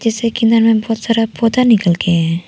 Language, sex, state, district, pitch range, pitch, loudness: Hindi, female, Arunachal Pradesh, Papum Pare, 185-230 Hz, 225 Hz, -13 LUFS